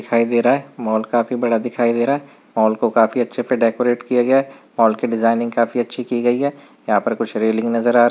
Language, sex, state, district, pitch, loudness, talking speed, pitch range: Hindi, male, Chhattisgarh, Bilaspur, 120 Hz, -18 LUFS, 245 wpm, 115-125 Hz